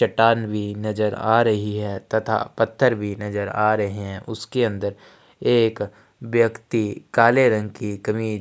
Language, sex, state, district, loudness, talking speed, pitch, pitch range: Hindi, male, Chhattisgarh, Sukma, -22 LUFS, 155 wpm, 110 Hz, 105-115 Hz